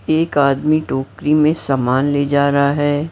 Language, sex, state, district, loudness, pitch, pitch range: Hindi, female, Maharashtra, Mumbai Suburban, -16 LUFS, 145 Hz, 140-150 Hz